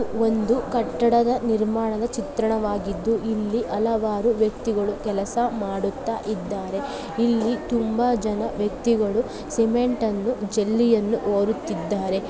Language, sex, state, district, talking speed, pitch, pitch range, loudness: Kannada, female, Karnataka, Gulbarga, 90 wpm, 220 Hz, 210-235 Hz, -23 LUFS